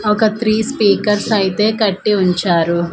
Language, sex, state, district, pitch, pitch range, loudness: Telugu, female, Andhra Pradesh, Manyam, 210 Hz, 190-215 Hz, -15 LUFS